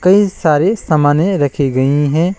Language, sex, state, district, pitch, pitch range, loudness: Hindi, male, West Bengal, Alipurduar, 155 Hz, 145-190 Hz, -13 LUFS